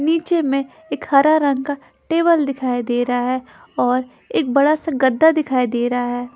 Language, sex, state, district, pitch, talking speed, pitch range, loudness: Hindi, female, Haryana, Charkhi Dadri, 275 Hz, 190 wpm, 245-305 Hz, -18 LUFS